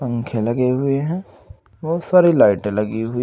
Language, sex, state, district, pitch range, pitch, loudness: Hindi, male, Uttar Pradesh, Saharanpur, 105-155 Hz, 120 Hz, -18 LUFS